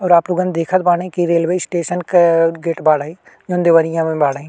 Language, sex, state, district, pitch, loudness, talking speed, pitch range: Bhojpuri, male, Uttar Pradesh, Deoria, 170 Hz, -16 LUFS, 200 wpm, 165-180 Hz